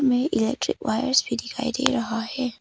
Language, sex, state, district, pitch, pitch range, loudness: Hindi, female, Arunachal Pradesh, Papum Pare, 255 Hz, 235-265 Hz, -24 LUFS